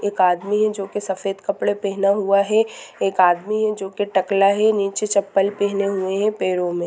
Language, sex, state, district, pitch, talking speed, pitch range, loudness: Hindi, female, Chhattisgarh, Rajnandgaon, 200 Hz, 200 wpm, 190-205 Hz, -20 LUFS